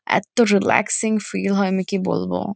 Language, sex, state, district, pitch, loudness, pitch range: Bengali, female, West Bengal, Kolkata, 195 Hz, -19 LUFS, 190-210 Hz